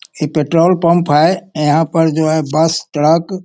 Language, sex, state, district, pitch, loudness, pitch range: Hindi, male, Bihar, Sitamarhi, 160 Hz, -13 LUFS, 155-170 Hz